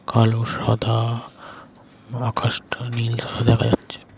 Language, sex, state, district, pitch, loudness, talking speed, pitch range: Bengali, male, West Bengal, Paschim Medinipur, 115 Hz, -22 LUFS, 100 wpm, 115-120 Hz